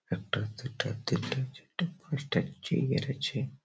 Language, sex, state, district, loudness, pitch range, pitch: Bengali, male, West Bengal, Malda, -33 LUFS, 130-165 Hz, 140 Hz